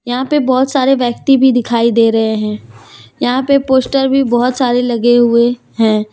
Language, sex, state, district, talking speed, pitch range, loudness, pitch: Hindi, female, Jharkhand, Deoghar, 185 wpm, 230-265 Hz, -12 LUFS, 245 Hz